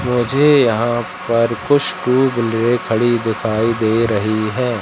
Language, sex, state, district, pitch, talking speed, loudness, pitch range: Hindi, male, Madhya Pradesh, Katni, 120 Hz, 110 wpm, -16 LUFS, 110-125 Hz